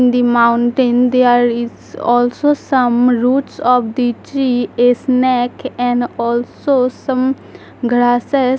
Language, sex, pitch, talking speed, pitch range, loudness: English, female, 245 Hz, 110 wpm, 240-255 Hz, -14 LUFS